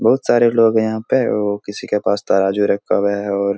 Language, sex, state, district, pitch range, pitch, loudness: Hindi, male, Bihar, Supaul, 100-110 Hz, 105 Hz, -17 LUFS